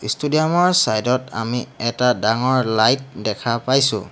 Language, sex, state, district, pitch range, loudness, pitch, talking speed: Assamese, male, Assam, Hailakandi, 110-135 Hz, -19 LUFS, 125 Hz, 145 wpm